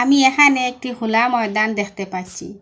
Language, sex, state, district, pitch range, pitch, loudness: Bengali, female, Assam, Hailakandi, 210-255 Hz, 235 Hz, -17 LUFS